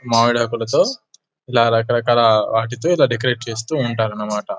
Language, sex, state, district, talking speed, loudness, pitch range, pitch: Telugu, male, Telangana, Nalgonda, 105 wpm, -18 LUFS, 115-120 Hz, 115 Hz